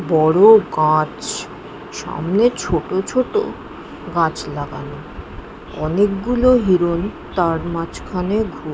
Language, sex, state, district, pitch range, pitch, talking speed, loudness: Bengali, female, West Bengal, Jhargram, 165-215 Hz, 185 Hz, 80 wpm, -18 LUFS